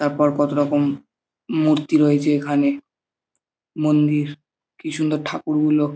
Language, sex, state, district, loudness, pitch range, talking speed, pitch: Bengali, male, West Bengal, Jhargram, -20 LUFS, 145-150 Hz, 100 wpm, 150 Hz